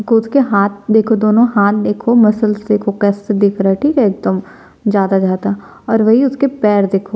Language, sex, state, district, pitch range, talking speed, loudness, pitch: Hindi, female, Chhattisgarh, Sukma, 200-225 Hz, 175 wpm, -13 LUFS, 210 Hz